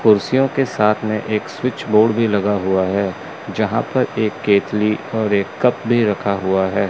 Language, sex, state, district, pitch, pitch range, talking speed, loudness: Hindi, male, Chandigarh, Chandigarh, 105 Hz, 100-115 Hz, 190 wpm, -18 LUFS